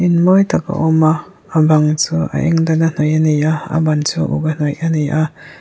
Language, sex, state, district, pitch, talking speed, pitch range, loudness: Mizo, female, Mizoram, Aizawl, 155 Hz, 265 wpm, 155-165 Hz, -15 LUFS